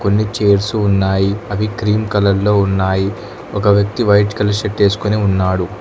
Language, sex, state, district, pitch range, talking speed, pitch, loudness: Telugu, male, Telangana, Hyderabad, 100-105 Hz, 155 wpm, 100 Hz, -15 LUFS